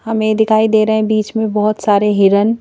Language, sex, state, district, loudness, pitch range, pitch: Hindi, female, Madhya Pradesh, Bhopal, -13 LUFS, 210-220 Hz, 215 Hz